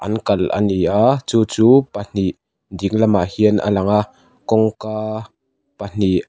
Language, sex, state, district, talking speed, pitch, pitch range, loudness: Mizo, male, Mizoram, Aizawl, 160 wpm, 105 Hz, 100-110 Hz, -17 LUFS